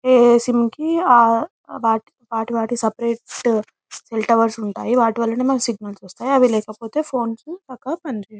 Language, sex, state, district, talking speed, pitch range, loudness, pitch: Telugu, female, Telangana, Karimnagar, 145 wpm, 225-255 Hz, -19 LUFS, 235 Hz